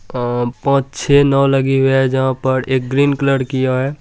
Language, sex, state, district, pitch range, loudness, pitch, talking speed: Hindi, male, Bihar, Supaul, 130-140 Hz, -15 LUFS, 135 Hz, 195 wpm